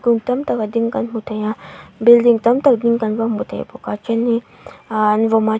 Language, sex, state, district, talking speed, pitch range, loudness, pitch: Mizo, female, Mizoram, Aizawl, 265 wpm, 220-235 Hz, -17 LUFS, 230 Hz